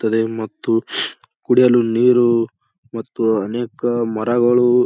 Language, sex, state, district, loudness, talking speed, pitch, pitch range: Kannada, male, Karnataka, Bijapur, -17 LUFS, 85 wpm, 120 Hz, 115-120 Hz